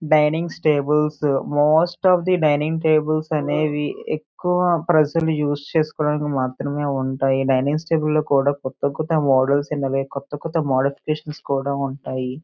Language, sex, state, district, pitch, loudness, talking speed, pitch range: Telugu, male, Andhra Pradesh, Srikakulam, 150 Hz, -20 LUFS, 125 wpm, 140-155 Hz